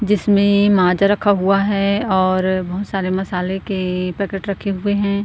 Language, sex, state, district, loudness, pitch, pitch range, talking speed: Hindi, female, Chhattisgarh, Korba, -17 LUFS, 195 Hz, 185-200 Hz, 160 wpm